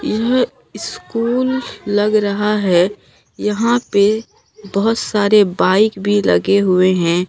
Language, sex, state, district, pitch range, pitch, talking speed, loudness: Hindi, female, Bihar, Katihar, 200-225 Hz, 210 Hz, 115 wpm, -16 LUFS